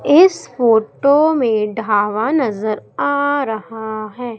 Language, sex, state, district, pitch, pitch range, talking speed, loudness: Hindi, female, Madhya Pradesh, Umaria, 225 Hz, 215-285 Hz, 110 wpm, -16 LUFS